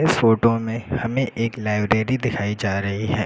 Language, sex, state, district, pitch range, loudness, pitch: Hindi, male, Uttar Pradesh, Lucknow, 105-120 Hz, -21 LUFS, 115 Hz